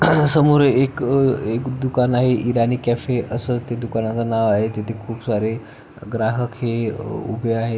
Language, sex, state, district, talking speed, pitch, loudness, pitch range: Marathi, male, Maharashtra, Pune, 155 wpm, 120 Hz, -20 LUFS, 115-125 Hz